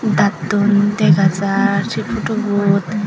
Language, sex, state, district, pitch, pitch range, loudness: Chakma, female, Tripura, Dhalai, 200 Hz, 195-205 Hz, -16 LUFS